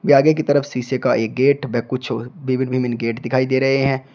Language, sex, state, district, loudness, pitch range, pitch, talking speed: Hindi, male, Uttar Pradesh, Shamli, -19 LUFS, 125-135 Hz, 130 Hz, 230 wpm